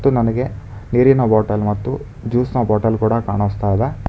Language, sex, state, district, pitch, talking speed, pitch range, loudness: Kannada, male, Karnataka, Bangalore, 110 Hz, 145 wpm, 105-125 Hz, -17 LUFS